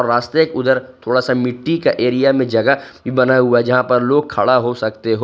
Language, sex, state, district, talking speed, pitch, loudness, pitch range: Hindi, male, Jharkhand, Ranchi, 220 wpm, 125 Hz, -16 LUFS, 120-130 Hz